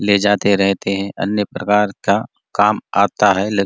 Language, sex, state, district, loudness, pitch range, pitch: Hindi, male, Chhattisgarh, Bastar, -17 LUFS, 100-105 Hz, 100 Hz